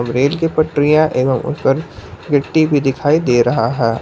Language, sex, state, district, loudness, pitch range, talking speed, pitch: Hindi, male, Jharkhand, Palamu, -15 LUFS, 125-155 Hz, 165 wpm, 145 Hz